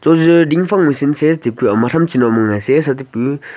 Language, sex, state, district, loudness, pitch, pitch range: Wancho, male, Arunachal Pradesh, Longding, -14 LUFS, 140 Hz, 120-160 Hz